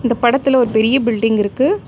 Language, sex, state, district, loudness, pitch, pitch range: Tamil, female, Tamil Nadu, Nilgiris, -15 LUFS, 240 Hz, 225-265 Hz